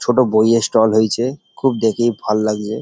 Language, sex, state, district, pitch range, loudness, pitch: Bengali, male, West Bengal, Dakshin Dinajpur, 110-120 Hz, -16 LUFS, 110 Hz